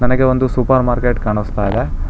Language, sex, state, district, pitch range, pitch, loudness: Kannada, male, Karnataka, Bangalore, 105-130 Hz, 120 Hz, -16 LUFS